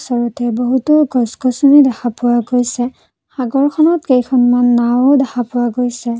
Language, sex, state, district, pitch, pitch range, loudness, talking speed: Assamese, female, Assam, Kamrup Metropolitan, 245 Hz, 240-265 Hz, -14 LUFS, 125 wpm